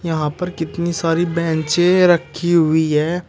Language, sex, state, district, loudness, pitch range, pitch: Hindi, male, Uttar Pradesh, Shamli, -17 LUFS, 160-175 Hz, 170 Hz